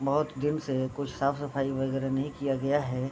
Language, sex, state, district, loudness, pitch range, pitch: Hindi, male, Bihar, Vaishali, -30 LUFS, 135-145 Hz, 135 Hz